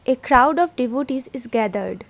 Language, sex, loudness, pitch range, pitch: English, female, -20 LUFS, 240-270 Hz, 260 Hz